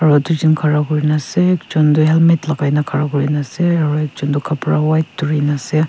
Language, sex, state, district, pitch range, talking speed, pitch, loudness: Nagamese, female, Nagaland, Kohima, 150-155 Hz, 215 wpm, 150 Hz, -15 LUFS